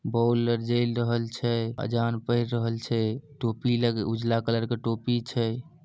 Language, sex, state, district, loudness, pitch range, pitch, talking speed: Maithili, male, Bihar, Samastipur, -27 LUFS, 115-120 Hz, 120 Hz, 165 wpm